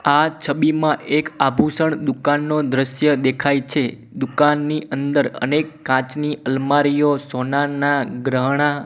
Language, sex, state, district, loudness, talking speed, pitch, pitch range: Gujarati, male, Gujarat, Gandhinagar, -19 LUFS, 100 wpm, 145 Hz, 135-150 Hz